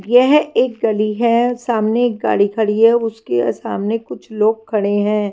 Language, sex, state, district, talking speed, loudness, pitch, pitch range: Hindi, female, Himachal Pradesh, Shimla, 170 wpm, -16 LUFS, 225 Hz, 210-235 Hz